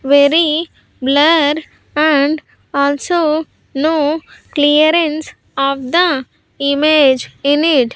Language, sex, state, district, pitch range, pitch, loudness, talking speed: English, female, Andhra Pradesh, Sri Satya Sai, 280-315 Hz, 295 Hz, -14 LUFS, 85 wpm